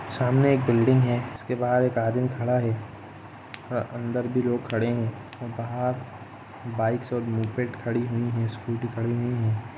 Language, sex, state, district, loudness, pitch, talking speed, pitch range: Hindi, male, Jharkhand, Jamtara, -26 LUFS, 120 Hz, 165 wpm, 115-125 Hz